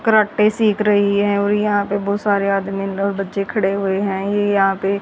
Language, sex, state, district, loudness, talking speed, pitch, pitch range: Hindi, female, Haryana, Jhajjar, -18 LUFS, 225 wpm, 200 Hz, 195-205 Hz